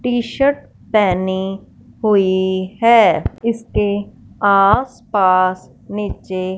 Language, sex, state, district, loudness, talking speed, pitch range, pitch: Hindi, male, Punjab, Fazilka, -16 LUFS, 75 wpm, 190-230 Hz, 200 Hz